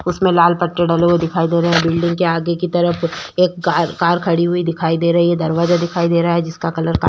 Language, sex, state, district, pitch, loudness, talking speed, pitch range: Hindi, female, Uttarakhand, Tehri Garhwal, 170 Hz, -16 LUFS, 270 wpm, 170-175 Hz